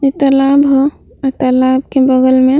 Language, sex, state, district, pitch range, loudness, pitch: Bhojpuri, female, Uttar Pradesh, Ghazipur, 260-275 Hz, -11 LUFS, 270 Hz